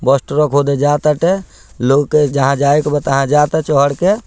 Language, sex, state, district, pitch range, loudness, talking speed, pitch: Bhojpuri, male, Bihar, Muzaffarpur, 140-150 Hz, -14 LUFS, 180 wpm, 145 Hz